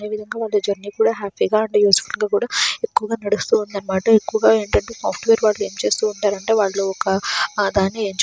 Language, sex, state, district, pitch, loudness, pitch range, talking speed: Telugu, female, Andhra Pradesh, Srikakulam, 210 Hz, -19 LUFS, 200-225 Hz, 190 wpm